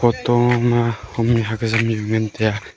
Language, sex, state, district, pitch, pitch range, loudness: Wancho, male, Arunachal Pradesh, Longding, 115 Hz, 110-120 Hz, -19 LUFS